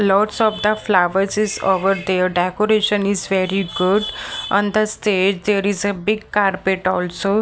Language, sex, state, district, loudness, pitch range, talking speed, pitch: English, female, Maharashtra, Mumbai Suburban, -18 LUFS, 190-210 Hz, 160 wpm, 200 Hz